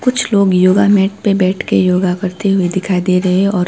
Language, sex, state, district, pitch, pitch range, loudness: Hindi, female, West Bengal, Alipurduar, 185 Hz, 185-200 Hz, -13 LUFS